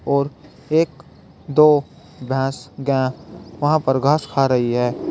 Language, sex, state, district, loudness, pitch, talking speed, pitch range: Hindi, male, Uttar Pradesh, Saharanpur, -19 LUFS, 140 Hz, 130 wpm, 130-150 Hz